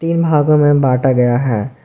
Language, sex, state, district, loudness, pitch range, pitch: Hindi, male, Jharkhand, Garhwa, -13 LUFS, 125-150 Hz, 135 Hz